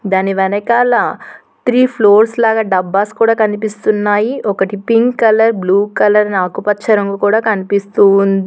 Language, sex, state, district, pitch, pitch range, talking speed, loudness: Telugu, female, Telangana, Hyderabad, 210 Hz, 200-225 Hz, 125 wpm, -13 LUFS